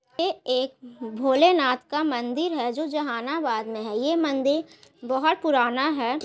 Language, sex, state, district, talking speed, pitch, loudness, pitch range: Hindi, female, Bihar, Gaya, 155 wpm, 270 Hz, -24 LUFS, 245-315 Hz